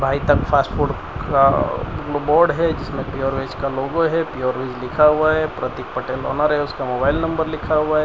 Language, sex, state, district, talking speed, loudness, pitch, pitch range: Hindi, male, Gujarat, Valsad, 195 wpm, -19 LUFS, 145 Hz, 135-155 Hz